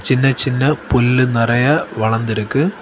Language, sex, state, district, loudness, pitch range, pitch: Tamil, male, Tamil Nadu, Kanyakumari, -15 LUFS, 115-135 Hz, 130 Hz